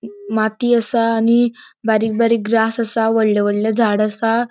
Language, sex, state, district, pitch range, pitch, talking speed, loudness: Konkani, female, Goa, North and South Goa, 215-230 Hz, 225 Hz, 145 wpm, -17 LUFS